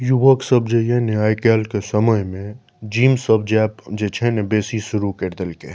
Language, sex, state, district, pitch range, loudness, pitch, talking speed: Maithili, male, Bihar, Saharsa, 105-120 Hz, -18 LUFS, 110 Hz, 200 wpm